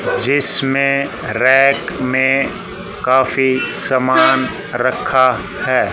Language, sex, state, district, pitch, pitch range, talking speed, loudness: Hindi, male, Haryana, Charkhi Dadri, 135 Hz, 130-140 Hz, 70 wpm, -15 LUFS